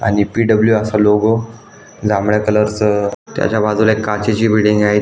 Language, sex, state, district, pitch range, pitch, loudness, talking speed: Marathi, male, Maharashtra, Aurangabad, 105-110 Hz, 105 Hz, -15 LUFS, 165 wpm